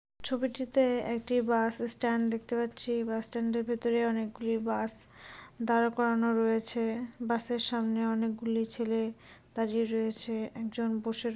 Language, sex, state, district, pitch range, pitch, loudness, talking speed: Bengali, female, West Bengal, Dakshin Dinajpur, 225-235 Hz, 230 Hz, -31 LUFS, 135 wpm